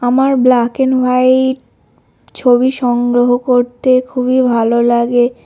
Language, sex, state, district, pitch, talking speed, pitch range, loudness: Bengali, male, West Bengal, North 24 Parganas, 250 Hz, 110 wpm, 245-255 Hz, -12 LUFS